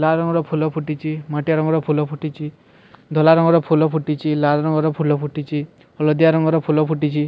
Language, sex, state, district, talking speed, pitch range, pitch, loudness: Odia, male, Odisha, Sambalpur, 165 wpm, 150-160 Hz, 155 Hz, -18 LUFS